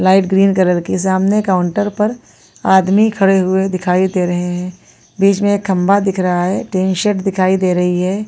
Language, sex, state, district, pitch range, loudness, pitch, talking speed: Hindi, female, Maharashtra, Washim, 185-195 Hz, -14 LUFS, 190 Hz, 195 wpm